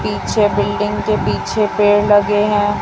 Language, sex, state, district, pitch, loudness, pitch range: Hindi, female, Chhattisgarh, Raipur, 210 Hz, -15 LUFS, 205-210 Hz